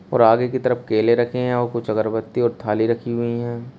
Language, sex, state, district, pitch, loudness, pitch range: Hindi, male, Uttar Pradesh, Shamli, 120 Hz, -20 LUFS, 110-120 Hz